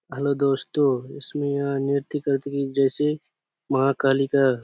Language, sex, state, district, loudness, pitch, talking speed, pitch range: Hindi, male, Chhattisgarh, Bastar, -23 LUFS, 140 Hz, 130 wpm, 135-140 Hz